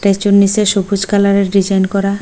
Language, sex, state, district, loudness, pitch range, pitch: Bengali, female, Assam, Hailakandi, -12 LUFS, 195-200 Hz, 200 Hz